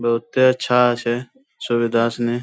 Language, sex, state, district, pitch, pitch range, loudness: Angika, male, Bihar, Bhagalpur, 120 Hz, 120-125 Hz, -19 LUFS